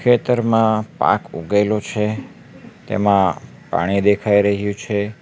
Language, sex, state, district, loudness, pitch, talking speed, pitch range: Gujarati, male, Gujarat, Valsad, -18 LUFS, 105 Hz, 105 wpm, 100-110 Hz